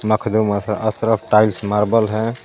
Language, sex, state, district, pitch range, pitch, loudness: Hindi, male, Jharkhand, Garhwa, 105-110 Hz, 110 Hz, -17 LUFS